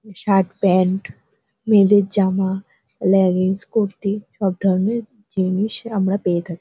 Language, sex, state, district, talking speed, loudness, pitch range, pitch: Bengali, female, West Bengal, North 24 Parganas, 110 wpm, -19 LUFS, 185-205 Hz, 195 Hz